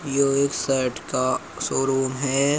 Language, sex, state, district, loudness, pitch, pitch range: Hindi, male, Uttar Pradesh, Muzaffarnagar, -23 LUFS, 135 Hz, 130-140 Hz